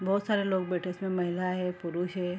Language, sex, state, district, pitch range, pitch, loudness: Hindi, female, Bihar, Araria, 180-190 Hz, 180 Hz, -31 LUFS